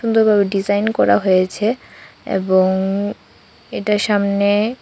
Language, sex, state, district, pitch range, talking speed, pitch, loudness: Bengali, female, Tripura, West Tripura, 195-210 Hz, 85 wpm, 205 Hz, -17 LUFS